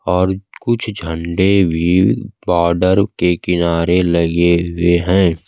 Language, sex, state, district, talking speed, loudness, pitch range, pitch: Hindi, male, Bihar, Kaimur, 110 wpm, -15 LUFS, 85-95 Hz, 90 Hz